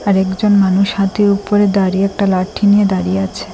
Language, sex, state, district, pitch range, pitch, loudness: Bengali, female, Assam, Hailakandi, 190-205 Hz, 195 Hz, -14 LUFS